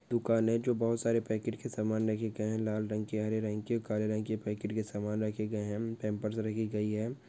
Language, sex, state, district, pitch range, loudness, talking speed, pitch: Hindi, male, West Bengal, Dakshin Dinajpur, 105-115 Hz, -34 LUFS, 245 wpm, 110 Hz